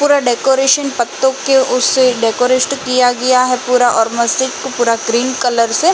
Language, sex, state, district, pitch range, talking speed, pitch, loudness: Hindi, female, Uttar Pradesh, Jalaun, 240-265 Hz, 180 wpm, 255 Hz, -13 LUFS